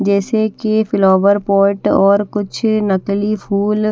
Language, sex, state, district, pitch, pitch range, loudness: Hindi, female, Haryana, Charkhi Dadri, 205 Hz, 200-215 Hz, -15 LUFS